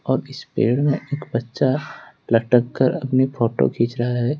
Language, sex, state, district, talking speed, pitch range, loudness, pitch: Hindi, male, Odisha, Khordha, 175 wpm, 120-135 Hz, -21 LUFS, 125 Hz